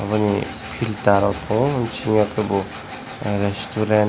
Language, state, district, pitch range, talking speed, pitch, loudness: Kokborok, Tripura, West Tripura, 100-110 Hz, 130 wpm, 105 Hz, -21 LUFS